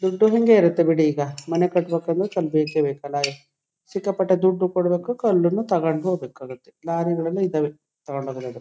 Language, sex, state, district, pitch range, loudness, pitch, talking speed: Kannada, female, Karnataka, Shimoga, 145-185 Hz, -22 LUFS, 170 Hz, 140 wpm